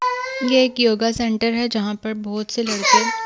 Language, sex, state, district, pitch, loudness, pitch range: Hindi, female, Delhi, New Delhi, 235 Hz, -19 LUFS, 220-260 Hz